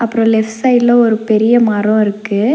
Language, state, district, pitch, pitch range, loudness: Tamil, Tamil Nadu, Nilgiris, 220 Hz, 215-240 Hz, -12 LUFS